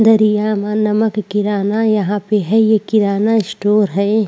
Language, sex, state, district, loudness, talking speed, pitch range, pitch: Hindi, female, Maharashtra, Chandrapur, -15 LUFS, 155 wpm, 205-220 Hz, 210 Hz